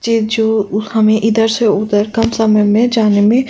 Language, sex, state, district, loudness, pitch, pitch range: Hindi, female, Uttar Pradesh, Jyotiba Phule Nagar, -13 LUFS, 220 Hz, 210-225 Hz